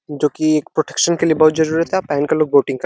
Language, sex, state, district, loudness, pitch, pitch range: Hindi, male, Uttar Pradesh, Deoria, -16 LUFS, 155 Hz, 145-160 Hz